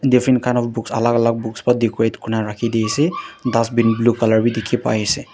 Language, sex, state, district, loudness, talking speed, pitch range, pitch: Nagamese, male, Nagaland, Dimapur, -18 LUFS, 225 wpm, 115-125 Hz, 115 Hz